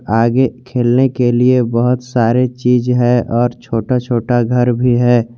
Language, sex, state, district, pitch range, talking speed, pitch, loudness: Hindi, male, Jharkhand, Garhwa, 120-125 Hz, 155 wpm, 120 Hz, -14 LUFS